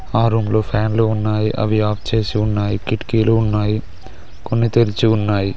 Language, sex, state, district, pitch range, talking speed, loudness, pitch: Telugu, male, Telangana, Mahabubabad, 105-115 Hz, 150 wpm, -18 LUFS, 110 Hz